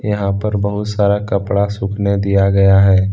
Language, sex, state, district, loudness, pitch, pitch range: Hindi, male, Jharkhand, Deoghar, -15 LUFS, 100 Hz, 100-105 Hz